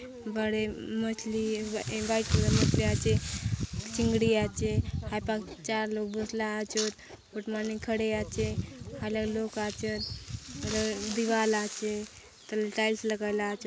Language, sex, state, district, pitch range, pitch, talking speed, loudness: Halbi, female, Chhattisgarh, Bastar, 210-220 Hz, 215 Hz, 125 wpm, -31 LUFS